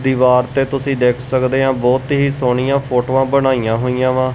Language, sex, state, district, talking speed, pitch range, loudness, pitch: Punjabi, male, Punjab, Kapurthala, 180 wpm, 125-135 Hz, -15 LUFS, 130 Hz